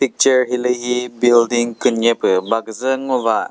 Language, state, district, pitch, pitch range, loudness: Chakhesang, Nagaland, Dimapur, 120 Hz, 115-125 Hz, -17 LUFS